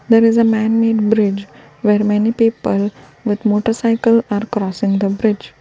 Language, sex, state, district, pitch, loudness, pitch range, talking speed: English, female, Gujarat, Valsad, 220 Hz, -16 LUFS, 205-225 Hz, 170 wpm